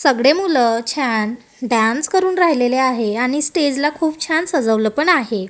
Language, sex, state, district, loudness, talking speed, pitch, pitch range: Marathi, female, Maharashtra, Gondia, -17 LUFS, 165 wpm, 275 Hz, 230-315 Hz